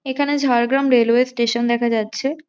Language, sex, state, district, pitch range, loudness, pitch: Bengali, female, West Bengal, Jhargram, 235-270 Hz, -18 LUFS, 245 Hz